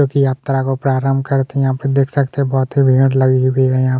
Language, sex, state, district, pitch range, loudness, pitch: Hindi, male, Chhattisgarh, Kabirdham, 130-135 Hz, -15 LUFS, 135 Hz